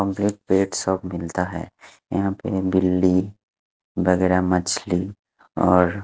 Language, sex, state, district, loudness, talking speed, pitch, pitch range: Hindi, male, Haryana, Charkhi Dadri, -22 LUFS, 110 wpm, 95 Hz, 90-95 Hz